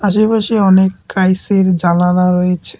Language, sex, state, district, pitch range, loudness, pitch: Bengali, male, West Bengal, Cooch Behar, 180-200 Hz, -13 LUFS, 190 Hz